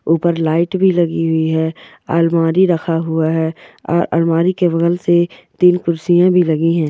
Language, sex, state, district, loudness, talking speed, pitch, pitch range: Hindi, female, Bihar, Jahanabad, -15 LUFS, 175 wpm, 165 Hz, 165-175 Hz